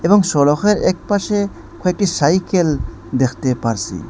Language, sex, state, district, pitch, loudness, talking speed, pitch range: Bengali, male, Assam, Hailakandi, 170 Hz, -17 LUFS, 105 wpm, 130-200 Hz